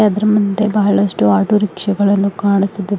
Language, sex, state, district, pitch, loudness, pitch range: Kannada, female, Karnataka, Bidar, 200 Hz, -14 LUFS, 195-210 Hz